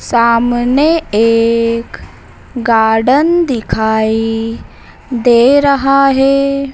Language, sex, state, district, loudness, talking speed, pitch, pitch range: Hindi, female, Madhya Pradesh, Dhar, -11 LUFS, 60 wpm, 240 Hz, 230-275 Hz